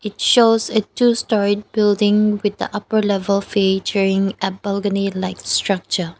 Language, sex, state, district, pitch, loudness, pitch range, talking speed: English, female, Nagaland, Dimapur, 205 Hz, -18 LUFS, 195-210 Hz, 125 wpm